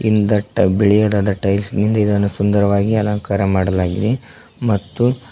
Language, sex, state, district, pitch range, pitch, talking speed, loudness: Kannada, male, Karnataka, Koppal, 100-110 Hz, 105 Hz, 115 wpm, -17 LUFS